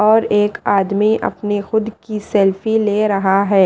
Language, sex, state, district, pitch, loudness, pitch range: Hindi, female, Haryana, Rohtak, 205 Hz, -16 LUFS, 200-220 Hz